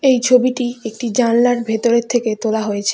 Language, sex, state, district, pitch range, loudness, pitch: Bengali, female, West Bengal, Alipurduar, 220-245 Hz, -16 LUFS, 235 Hz